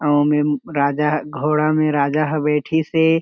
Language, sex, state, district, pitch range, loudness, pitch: Chhattisgarhi, male, Chhattisgarh, Jashpur, 145-155 Hz, -18 LUFS, 150 Hz